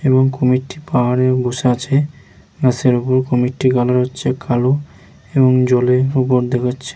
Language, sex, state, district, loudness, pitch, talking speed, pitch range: Bengali, male, West Bengal, Jhargram, -16 LUFS, 130 Hz, 130 wpm, 125-130 Hz